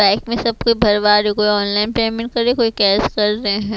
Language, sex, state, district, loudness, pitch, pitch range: Hindi, female, Chhattisgarh, Raipur, -16 LUFS, 210 Hz, 210-230 Hz